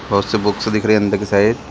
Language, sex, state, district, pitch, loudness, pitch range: Hindi, male, Chhattisgarh, Bilaspur, 105 Hz, -16 LUFS, 100-110 Hz